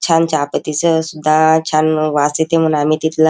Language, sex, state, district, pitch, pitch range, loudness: Marathi, male, Maharashtra, Chandrapur, 155 Hz, 155-160 Hz, -14 LUFS